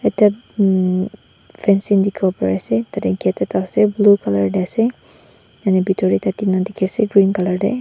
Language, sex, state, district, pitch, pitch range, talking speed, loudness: Nagamese, female, Nagaland, Dimapur, 190 Hz, 180-205 Hz, 170 wpm, -17 LUFS